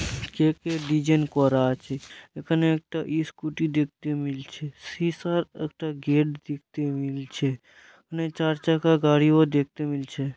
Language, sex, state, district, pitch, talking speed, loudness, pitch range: Bengali, male, West Bengal, Malda, 150 Hz, 125 wpm, -25 LUFS, 140-160 Hz